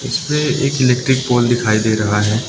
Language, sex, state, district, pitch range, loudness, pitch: Hindi, male, Arunachal Pradesh, Lower Dibang Valley, 110-135 Hz, -15 LUFS, 125 Hz